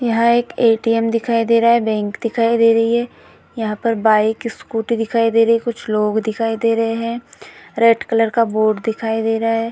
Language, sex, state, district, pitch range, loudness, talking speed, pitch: Hindi, female, Bihar, Vaishali, 225-230 Hz, -17 LUFS, 215 wpm, 230 Hz